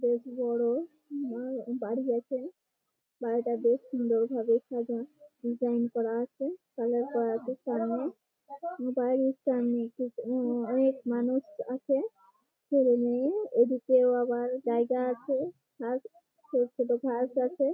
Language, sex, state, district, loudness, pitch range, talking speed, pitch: Bengali, female, West Bengal, Malda, -30 LUFS, 240-265 Hz, 120 wpm, 250 Hz